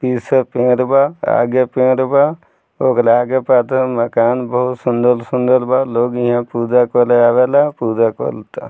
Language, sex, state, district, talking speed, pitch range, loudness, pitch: Bhojpuri, male, Bihar, Muzaffarpur, 140 wpm, 120-130 Hz, -14 LUFS, 125 Hz